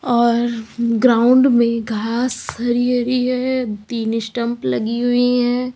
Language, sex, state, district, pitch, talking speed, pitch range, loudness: Hindi, female, Uttar Pradesh, Lalitpur, 240 Hz, 125 wpm, 230-250 Hz, -18 LUFS